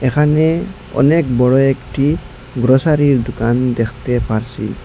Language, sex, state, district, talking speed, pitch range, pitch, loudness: Bengali, male, Assam, Hailakandi, 100 wpm, 125-150 Hz, 130 Hz, -15 LUFS